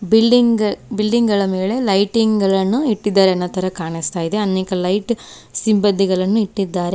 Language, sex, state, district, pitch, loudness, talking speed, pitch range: Kannada, female, Karnataka, Koppal, 200 Hz, -17 LUFS, 120 wpm, 185-220 Hz